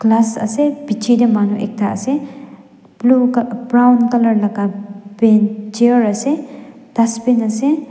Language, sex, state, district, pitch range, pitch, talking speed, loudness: Nagamese, female, Nagaland, Dimapur, 215-255 Hz, 230 Hz, 115 wpm, -15 LUFS